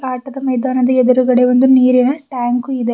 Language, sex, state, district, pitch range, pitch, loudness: Kannada, female, Karnataka, Bidar, 250-260 Hz, 255 Hz, -13 LUFS